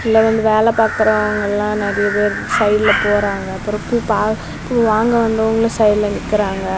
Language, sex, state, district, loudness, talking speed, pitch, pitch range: Tamil, female, Tamil Nadu, Kanyakumari, -16 LUFS, 140 wpm, 210 Hz, 205-220 Hz